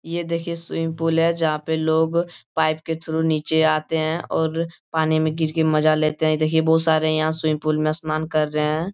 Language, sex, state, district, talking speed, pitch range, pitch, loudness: Hindi, male, Bihar, Jamui, 220 wpm, 155-165 Hz, 160 Hz, -21 LUFS